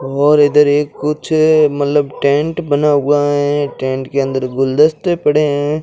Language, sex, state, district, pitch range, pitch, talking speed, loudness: Hindi, male, Rajasthan, Jaisalmer, 140-150 Hz, 145 Hz, 155 wpm, -14 LUFS